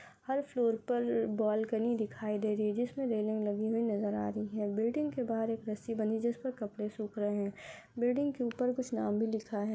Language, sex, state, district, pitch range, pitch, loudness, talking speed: Hindi, female, Goa, North and South Goa, 210-240 Hz, 225 Hz, -34 LUFS, 220 wpm